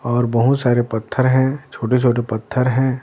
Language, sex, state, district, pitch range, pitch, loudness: Hindi, male, Bihar, Patna, 120-130 Hz, 125 Hz, -18 LUFS